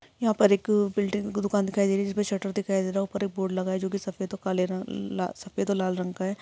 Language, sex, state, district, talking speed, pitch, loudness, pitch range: Hindi, female, Maharashtra, Aurangabad, 310 wpm, 200 Hz, -27 LUFS, 190-205 Hz